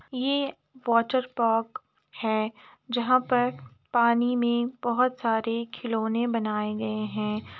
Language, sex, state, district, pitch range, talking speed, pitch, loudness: Hindi, female, Uttar Pradesh, Jalaun, 220-245 Hz, 100 wpm, 235 Hz, -27 LUFS